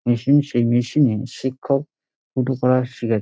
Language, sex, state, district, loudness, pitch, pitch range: Bengali, male, West Bengal, Dakshin Dinajpur, -20 LUFS, 130 Hz, 120-135 Hz